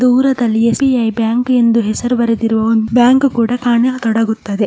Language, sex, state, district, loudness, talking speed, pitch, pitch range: Kannada, male, Karnataka, Mysore, -13 LUFS, 140 wpm, 235 Hz, 225-250 Hz